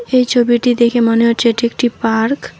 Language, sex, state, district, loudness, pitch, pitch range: Bengali, female, West Bengal, Alipurduar, -14 LUFS, 240 Hz, 235-245 Hz